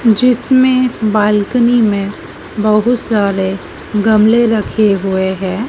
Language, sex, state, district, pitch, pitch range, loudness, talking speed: Hindi, female, Madhya Pradesh, Dhar, 215 Hz, 200-235 Hz, -13 LUFS, 95 wpm